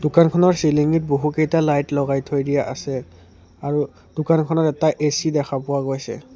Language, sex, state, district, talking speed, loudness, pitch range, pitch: Assamese, male, Assam, Sonitpur, 140 wpm, -20 LUFS, 140-160 Hz, 150 Hz